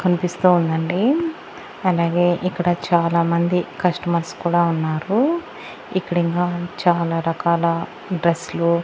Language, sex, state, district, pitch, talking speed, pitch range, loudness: Telugu, female, Andhra Pradesh, Annamaya, 175 Hz, 100 wpm, 170-180 Hz, -20 LUFS